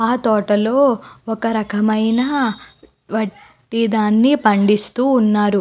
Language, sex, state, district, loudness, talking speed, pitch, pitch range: Telugu, female, Andhra Pradesh, Guntur, -17 LUFS, 85 wpm, 220 Hz, 210-245 Hz